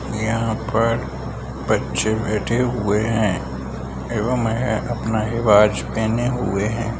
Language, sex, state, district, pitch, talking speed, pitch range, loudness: Hindi, male, Bihar, Madhepura, 110 Hz, 120 wpm, 105-115 Hz, -21 LUFS